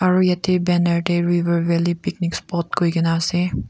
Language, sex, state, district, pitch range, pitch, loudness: Nagamese, female, Nagaland, Kohima, 170-180 Hz, 175 Hz, -20 LUFS